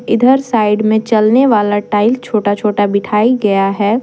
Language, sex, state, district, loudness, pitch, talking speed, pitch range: Hindi, female, Jharkhand, Deoghar, -12 LUFS, 215 Hz, 165 wpm, 205-230 Hz